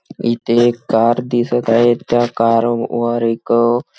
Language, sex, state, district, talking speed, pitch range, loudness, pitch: Marathi, male, Maharashtra, Nagpur, 135 wpm, 115-120 Hz, -15 LUFS, 120 Hz